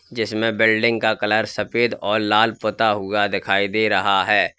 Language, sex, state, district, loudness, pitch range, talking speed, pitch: Hindi, male, Uttar Pradesh, Lalitpur, -19 LUFS, 105-115 Hz, 170 wpm, 110 Hz